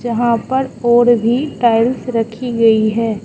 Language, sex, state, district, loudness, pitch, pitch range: Hindi, female, Mizoram, Aizawl, -15 LUFS, 235 Hz, 225-245 Hz